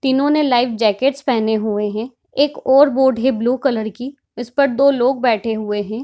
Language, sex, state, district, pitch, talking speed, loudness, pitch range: Hindi, female, Bihar, Darbhanga, 250 Hz, 210 wpm, -17 LUFS, 220-270 Hz